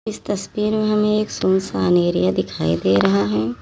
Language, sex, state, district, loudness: Hindi, female, Uttar Pradesh, Lalitpur, -19 LUFS